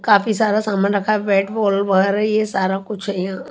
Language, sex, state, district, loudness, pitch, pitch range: Hindi, female, Chhattisgarh, Raipur, -18 LUFS, 200 Hz, 195-215 Hz